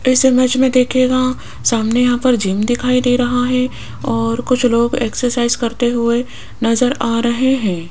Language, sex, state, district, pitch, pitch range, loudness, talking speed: Hindi, female, Rajasthan, Jaipur, 245 Hz, 235-255 Hz, -15 LUFS, 165 wpm